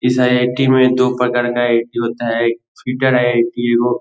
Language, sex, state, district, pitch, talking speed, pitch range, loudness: Hindi, male, Bihar, Lakhisarai, 120 Hz, 210 wpm, 120-125 Hz, -15 LUFS